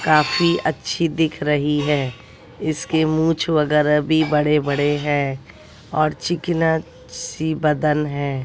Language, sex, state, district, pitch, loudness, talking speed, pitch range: Hindi, female, Bihar, West Champaran, 150 Hz, -20 LUFS, 120 wpm, 145-160 Hz